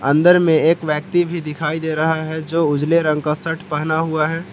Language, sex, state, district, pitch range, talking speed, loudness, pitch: Hindi, male, Jharkhand, Palamu, 155-165 Hz, 225 wpm, -18 LUFS, 160 Hz